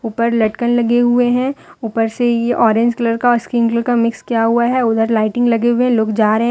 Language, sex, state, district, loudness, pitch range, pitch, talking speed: Hindi, female, Jharkhand, Deoghar, -15 LUFS, 225-240 Hz, 235 Hz, 250 wpm